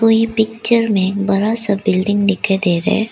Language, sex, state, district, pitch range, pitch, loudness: Hindi, female, Arunachal Pradesh, Lower Dibang Valley, 195-225 Hz, 205 Hz, -16 LUFS